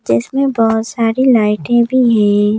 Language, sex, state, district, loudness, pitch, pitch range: Hindi, female, Madhya Pradesh, Bhopal, -13 LUFS, 225 Hz, 210-250 Hz